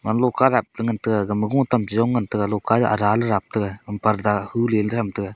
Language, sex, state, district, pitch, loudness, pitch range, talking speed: Wancho, male, Arunachal Pradesh, Longding, 110 Hz, -21 LUFS, 105-115 Hz, 200 wpm